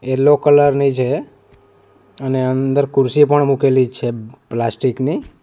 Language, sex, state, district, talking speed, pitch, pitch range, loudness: Gujarati, male, Gujarat, Valsad, 130 wpm, 135 Hz, 130-140 Hz, -16 LUFS